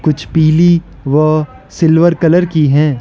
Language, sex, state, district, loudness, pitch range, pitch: Hindi, male, Arunachal Pradesh, Lower Dibang Valley, -11 LUFS, 150-170 Hz, 160 Hz